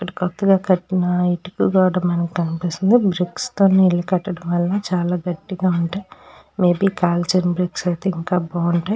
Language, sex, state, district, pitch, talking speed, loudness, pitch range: Telugu, female, Andhra Pradesh, Srikakulam, 180 Hz, 145 wpm, -19 LUFS, 175-190 Hz